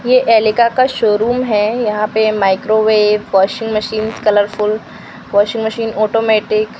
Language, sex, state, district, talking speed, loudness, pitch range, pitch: Hindi, female, Maharashtra, Washim, 130 wpm, -14 LUFS, 210-225 Hz, 215 Hz